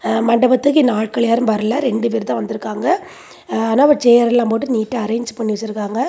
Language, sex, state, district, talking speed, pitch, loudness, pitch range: Tamil, female, Tamil Nadu, Kanyakumari, 185 wpm, 235 Hz, -16 LUFS, 225-245 Hz